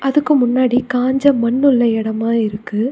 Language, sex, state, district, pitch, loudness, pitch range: Tamil, female, Tamil Nadu, Nilgiris, 250 Hz, -15 LUFS, 225-270 Hz